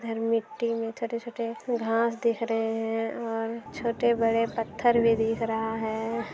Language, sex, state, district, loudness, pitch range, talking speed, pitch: Hindi, female, Bihar, Darbhanga, -28 LUFS, 225-235 Hz, 160 wpm, 230 Hz